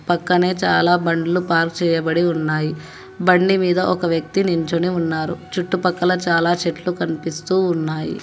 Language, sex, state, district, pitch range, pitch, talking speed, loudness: Telugu, male, Telangana, Hyderabad, 165-180 Hz, 175 Hz, 130 wpm, -19 LUFS